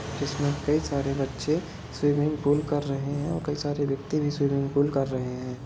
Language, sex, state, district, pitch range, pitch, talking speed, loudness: Hindi, male, Bihar, Lakhisarai, 140-145 Hz, 145 Hz, 200 wpm, -27 LUFS